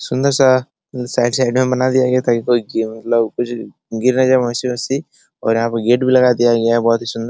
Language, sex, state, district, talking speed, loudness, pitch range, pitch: Hindi, male, Bihar, Araria, 245 wpm, -16 LUFS, 115-130 Hz, 120 Hz